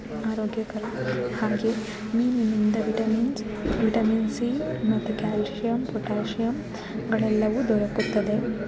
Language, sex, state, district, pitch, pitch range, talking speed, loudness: Kannada, female, Karnataka, Bijapur, 220 Hz, 215-225 Hz, 75 wpm, -26 LUFS